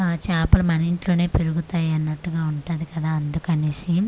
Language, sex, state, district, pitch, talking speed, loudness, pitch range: Telugu, female, Andhra Pradesh, Manyam, 165 Hz, 120 wpm, -22 LUFS, 155-170 Hz